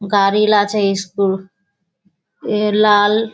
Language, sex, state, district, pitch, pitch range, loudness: Hindi, female, Bihar, Kishanganj, 200 Hz, 195-210 Hz, -15 LUFS